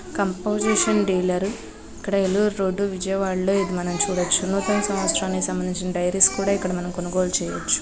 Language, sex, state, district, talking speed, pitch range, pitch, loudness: Telugu, female, Andhra Pradesh, Krishna, 145 wpm, 180-200 Hz, 190 Hz, -22 LUFS